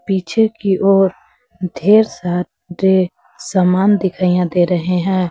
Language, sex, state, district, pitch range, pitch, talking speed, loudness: Hindi, female, Jharkhand, Garhwa, 180-195 Hz, 185 Hz, 115 wpm, -15 LUFS